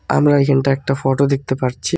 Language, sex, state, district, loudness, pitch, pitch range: Bengali, male, West Bengal, Alipurduar, -16 LUFS, 135 Hz, 135-140 Hz